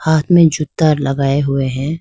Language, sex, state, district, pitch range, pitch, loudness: Hindi, female, Arunachal Pradesh, Lower Dibang Valley, 135-160 Hz, 150 Hz, -14 LUFS